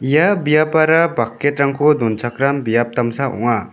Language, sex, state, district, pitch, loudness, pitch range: Garo, male, Meghalaya, West Garo Hills, 140 Hz, -16 LUFS, 120-150 Hz